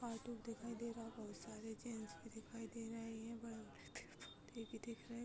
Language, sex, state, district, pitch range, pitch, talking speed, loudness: Hindi, female, Uttar Pradesh, Budaun, 225-230 Hz, 230 Hz, 195 wpm, -52 LUFS